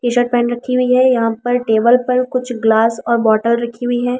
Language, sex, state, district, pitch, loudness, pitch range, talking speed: Hindi, female, Delhi, New Delhi, 240 Hz, -15 LUFS, 230-250 Hz, 230 wpm